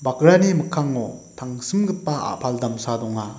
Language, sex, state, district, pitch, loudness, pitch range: Garo, male, Meghalaya, West Garo Hills, 130 Hz, -21 LUFS, 120-160 Hz